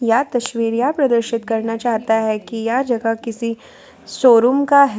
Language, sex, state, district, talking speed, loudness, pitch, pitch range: Hindi, female, Jharkhand, Ranchi, 170 wpm, -17 LUFS, 230 Hz, 225-245 Hz